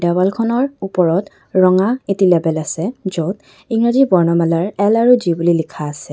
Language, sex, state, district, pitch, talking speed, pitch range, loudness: Assamese, female, Assam, Kamrup Metropolitan, 185 Hz, 145 wpm, 170-215 Hz, -16 LUFS